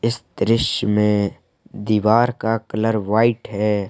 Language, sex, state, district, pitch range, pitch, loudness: Hindi, male, Jharkhand, Palamu, 105-115 Hz, 110 Hz, -19 LUFS